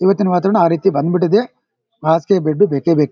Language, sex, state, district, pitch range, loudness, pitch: Kannada, male, Karnataka, Shimoga, 160-195 Hz, -15 LUFS, 180 Hz